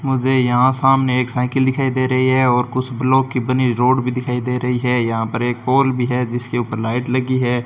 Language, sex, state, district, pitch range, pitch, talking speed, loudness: Hindi, male, Rajasthan, Bikaner, 125-130 Hz, 125 Hz, 250 wpm, -17 LUFS